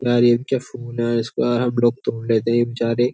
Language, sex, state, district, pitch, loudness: Hindi, male, Uttar Pradesh, Jyotiba Phule Nagar, 120 Hz, -20 LUFS